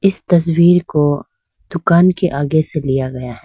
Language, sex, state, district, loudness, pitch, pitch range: Hindi, female, Arunachal Pradesh, Lower Dibang Valley, -15 LUFS, 160 Hz, 145-175 Hz